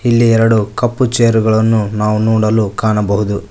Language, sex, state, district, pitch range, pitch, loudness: Kannada, male, Karnataka, Koppal, 105-115 Hz, 110 Hz, -13 LUFS